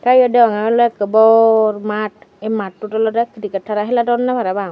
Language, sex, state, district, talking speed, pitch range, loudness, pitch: Chakma, female, Tripura, Dhalai, 150 wpm, 210-235 Hz, -15 LUFS, 220 Hz